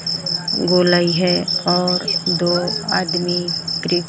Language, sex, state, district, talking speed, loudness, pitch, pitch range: Hindi, male, Maharashtra, Gondia, 90 wpm, -17 LUFS, 175 Hz, 175-180 Hz